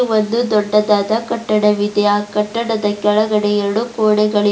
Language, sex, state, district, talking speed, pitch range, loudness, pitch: Kannada, female, Karnataka, Bidar, 120 wpm, 205-220 Hz, -16 LUFS, 210 Hz